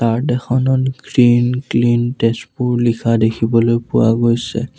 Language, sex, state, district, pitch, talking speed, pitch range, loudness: Assamese, male, Assam, Sonitpur, 120 Hz, 115 wpm, 115-125 Hz, -15 LUFS